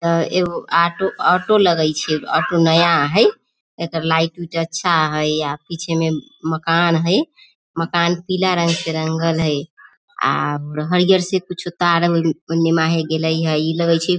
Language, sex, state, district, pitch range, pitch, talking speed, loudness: Maithili, female, Bihar, Samastipur, 160-175 Hz, 165 Hz, 145 wpm, -18 LUFS